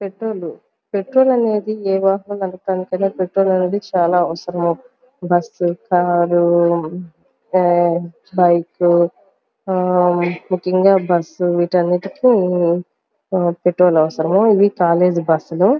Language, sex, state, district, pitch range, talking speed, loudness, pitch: Telugu, female, Andhra Pradesh, Guntur, 175-195 Hz, 80 wpm, -16 LUFS, 180 Hz